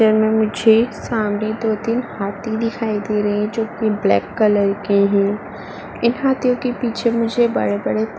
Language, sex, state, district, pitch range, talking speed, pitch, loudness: Hindi, female, Uttar Pradesh, Muzaffarnagar, 205-230 Hz, 155 wpm, 220 Hz, -18 LUFS